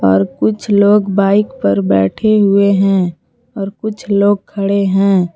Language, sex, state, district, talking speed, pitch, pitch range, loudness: Hindi, female, Jharkhand, Palamu, 145 wpm, 195 Hz, 175-205 Hz, -13 LUFS